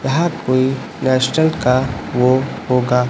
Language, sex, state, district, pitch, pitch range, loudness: Hindi, male, Chhattisgarh, Raipur, 130 Hz, 125-135 Hz, -17 LUFS